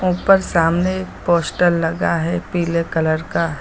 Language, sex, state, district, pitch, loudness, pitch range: Hindi, female, Uttar Pradesh, Lucknow, 170 Hz, -18 LUFS, 165-180 Hz